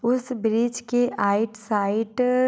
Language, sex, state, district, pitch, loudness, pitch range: Hindi, female, Jharkhand, Sahebganj, 235 Hz, -24 LUFS, 215-245 Hz